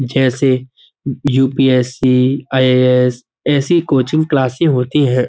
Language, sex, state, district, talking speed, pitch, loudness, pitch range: Hindi, male, Uttar Pradesh, Budaun, 90 wpm, 130 Hz, -14 LUFS, 125-140 Hz